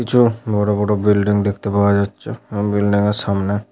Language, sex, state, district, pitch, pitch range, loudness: Bengali, male, West Bengal, Paschim Medinipur, 105 Hz, 100-105 Hz, -17 LUFS